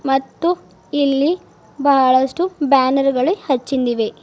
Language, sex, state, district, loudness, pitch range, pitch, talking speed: Kannada, female, Karnataka, Bidar, -17 LUFS, 265-295 Hz, 275 Hz, 85 wpm